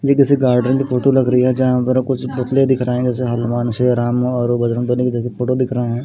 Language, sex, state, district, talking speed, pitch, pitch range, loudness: Hindi, male, Odisha, Malkangiri, 275 wpm, 125 Hz, 120-130 Hz, -16 LUFS